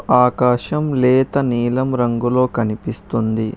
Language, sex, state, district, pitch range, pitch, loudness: Telugu, male, Telangana, Hyderabad, 120-130 Hz, 125 Hz, -17 LUFS